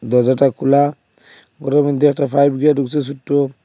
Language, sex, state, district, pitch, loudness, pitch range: Bengali, male, Assam, Hailakandi, 140 Hz, -16 LUFS, 135-145 Hz